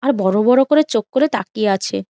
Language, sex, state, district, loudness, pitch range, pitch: Bengali, female, West Bengal, Jhargram, -16 LUFS, 195-280 Hz, 230 Hz